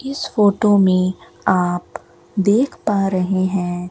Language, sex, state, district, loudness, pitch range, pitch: Hindi, female, Rajasthan, Bikaner, -18 LUFS, 185-205 Hz, 190 Hz